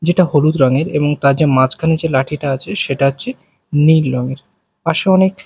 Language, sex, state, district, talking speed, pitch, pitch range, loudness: Bengali, male, Bihar, Katihar, 175 wpm, 155 Hz, 135-170 Hz, -15 LUFS